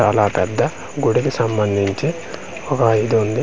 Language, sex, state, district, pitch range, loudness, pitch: Telugu, male, Andhra Pradesh, Manyam, 105-155 Hz, -18 LUFS, 115 Hz